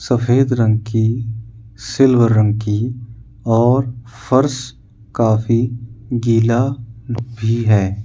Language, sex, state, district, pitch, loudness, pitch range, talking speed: Hindi, male, Chandigarh, Chandigarh, 115 Hz, -16 LUFS, 110-120 Hz, 90 wpm